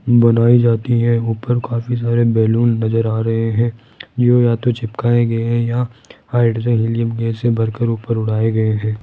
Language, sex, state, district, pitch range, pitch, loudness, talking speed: Hindi, male, Rajasthan, Jaipur, 115-120 Hz, 115 Hz, -16 LUFS, 175 wpm